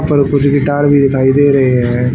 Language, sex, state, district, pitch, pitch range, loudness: Hindi, male, Haryana, Rohtak, 140 Hz, 130-145 Hz, -11 LUFS